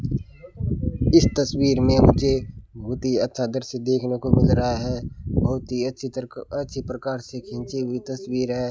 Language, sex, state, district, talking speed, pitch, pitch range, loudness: Hindi, male, Rajasthan, Bikaner, 165 wpm, 125 Hz, 125-130 Hz, -23 LUFS